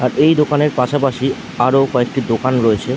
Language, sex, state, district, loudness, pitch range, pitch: Bengali, male, West Bengal, Dakshin Dinajpur, -15 LUFS, 125-140 Hz, 130 Hz